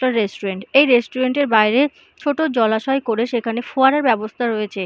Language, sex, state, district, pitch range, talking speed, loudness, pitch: Bengali, female, West Bengal, Purulia, 220-270 Hz, 195 wpm, -18 LUFS, 240 Hz